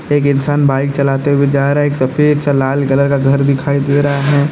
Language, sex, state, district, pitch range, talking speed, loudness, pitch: Hindi, male, Uttar Pradesh, Lalitpur, 140-145 Hz, 250 wpm, -13 LUFS, 140 Hz